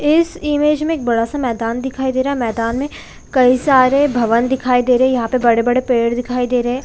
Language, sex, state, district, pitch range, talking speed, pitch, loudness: Hindi, female, Chhattisgarh, Bilaspur, 240-275 Hz, 235 wpm, 255 Hz, -16 LUFS